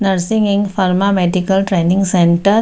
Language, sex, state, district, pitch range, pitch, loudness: Hindi, female, Bihar, Samastipur, 180-200 Hz, 195 Hz, -14 LUFS